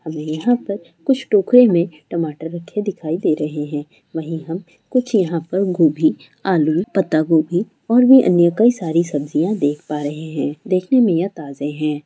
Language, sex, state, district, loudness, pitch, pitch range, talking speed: Hindi, female, Bihar, Kishanganj, -18 LUFS, 170 Hz, 155-200 Hz, 175 wpm